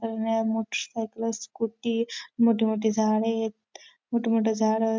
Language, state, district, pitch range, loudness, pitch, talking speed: Bhili, Maharashtra, Dhule, 220-230 Hz, -26 LUFS, 225 Hz, 130 wpm